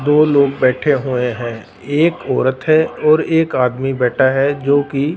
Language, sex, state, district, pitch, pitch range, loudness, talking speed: Hindi, male, Punjab, Fazilka, 140 Hz, 130-150 Hz, -15 LUFS, 160 wpm